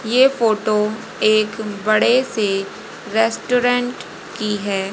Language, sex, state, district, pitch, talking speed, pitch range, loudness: Hindi, female, Haryana, Rohtak, 220 Hz, 95 wpm, 210-245 Hz, -18 LUFS